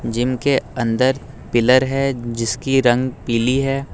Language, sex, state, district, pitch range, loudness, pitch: Hindi, male, Uttar Pradesh, Lucknow, 120-135 Hz, -18 LUFS, 130 Hz